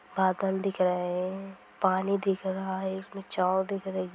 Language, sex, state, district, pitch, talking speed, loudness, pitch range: Hindi, female, Bihar, Sitamarhi, 190 Hz, 175 wpm, -29 LUFS, 185-195 Hz